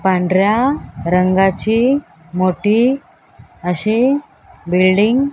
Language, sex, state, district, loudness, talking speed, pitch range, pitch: Marathi, female, Maharashtra, Mumbai Suburban, -15 LUFS, 65 wpm, 185-255 Hz, 200 Hz